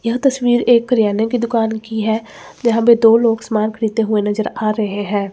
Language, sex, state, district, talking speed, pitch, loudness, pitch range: Hindi, female, Chandigarh, Chandigarh, 215 wpm, 225 Hz, -16 LUFS, 215-235 Hz